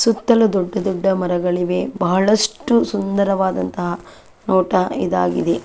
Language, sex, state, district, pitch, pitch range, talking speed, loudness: Kannada, female, Karnataka, Chamarajanagar, 190 Hz, 180-210 Hz, 95 wpm, -18 LUFS